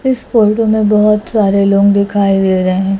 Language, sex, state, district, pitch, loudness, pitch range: Hindi, female, Chhattisgarh, Raipur, 200 Hz, -11 LUFS, 195-215 Hz